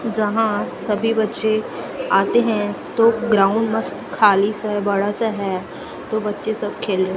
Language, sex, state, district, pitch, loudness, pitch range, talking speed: Hindi, female, Chhattisgarh, Raipur, 215 Hz, -19 LUFS, 205-225 Hz, 160 wpm